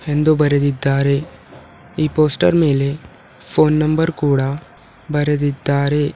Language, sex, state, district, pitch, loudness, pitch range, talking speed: Kannada, female, Karnataka, Bidar, 145 Hz, -17 LUFS, 140-155 Hz, 85 wpm